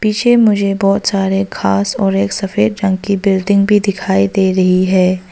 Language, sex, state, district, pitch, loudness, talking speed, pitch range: Hindi, female, Arunachal Pradesh, Longding, 195 Hz, -13 LUFS, 180 wpm, 190-200 Hz